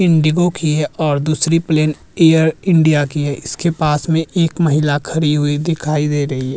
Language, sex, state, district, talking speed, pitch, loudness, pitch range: Hindi, male, Uttarakhand, Tehri Garhwal, 190 wpm, 155 Hz, -15 LUFS, 150-165 Hz